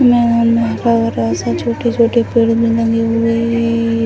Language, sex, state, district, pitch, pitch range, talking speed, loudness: Hindi, female, Bihar, Sitamarhi, 230 Hz, 230-235 Hz, 90 wpm, -14 LUFS